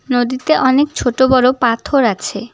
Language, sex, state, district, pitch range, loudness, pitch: Bengali, female, West Bengal, Cooch Behar, 245-260 Hz, -14 LUFS, 255 Hz